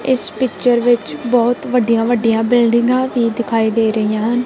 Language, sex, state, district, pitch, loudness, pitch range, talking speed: Punjabi, female, Punjab, Kapurthala, 235 Hz, -15 LUFS, 225-245 Hz, 160 wpm